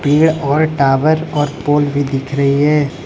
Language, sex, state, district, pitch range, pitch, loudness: Hindi, male, Arunachal Pradesh, Lower Dibang Valley, 140-155 Hz, 145 Hz, -14 LUFS